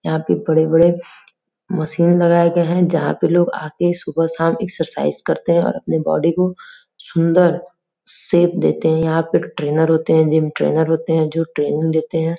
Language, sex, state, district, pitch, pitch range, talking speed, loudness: Hindi, female, Uttar Pradesh, Gorakhpur, 165 Hz, 160-175 Hz, 190 wpm, -17 LUFS